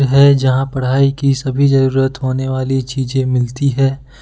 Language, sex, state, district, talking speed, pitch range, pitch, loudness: Hindi, male, Jharkhand, Ranchi, 155 wpm, 130-135 Hz, 135 Hz, -15 LUFS